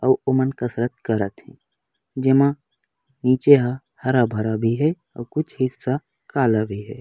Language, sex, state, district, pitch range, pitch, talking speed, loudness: Chhattisgarhi, male, Chhattisgarh, Raigarh, 120-135 Hz, 130 Hz, 145 wpm, -21 LUFS